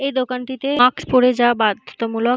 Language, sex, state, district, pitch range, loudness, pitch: Bengali, female, West Bengal, North 24 Parganas, 240-260 Hz, -18 LUFS, 250 Hz